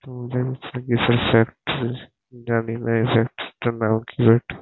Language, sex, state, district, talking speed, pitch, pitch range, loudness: Bengali, male, West Bengal, Purulia, 155 wpm, 120 Hz, 115-125 Hz, -22 LUFS